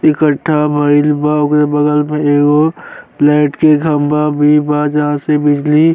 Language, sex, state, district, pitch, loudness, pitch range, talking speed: Bhojpuri, male, Uttar Pradesh, Gorakhpur, 150 Hz, -12 LUFS, 145-150 Hz, 160 wpm